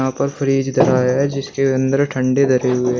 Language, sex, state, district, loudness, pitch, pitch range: Hindi, male, Uttar Pradesh, Shamli, -17 LUFS, 135 Hz, 130-135 Hz